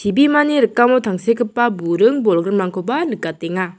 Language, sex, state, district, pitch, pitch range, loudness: Garo, female, Meghalaya, South Garo Hills, 210 Hz, 185-240 Hz, -16 LUFS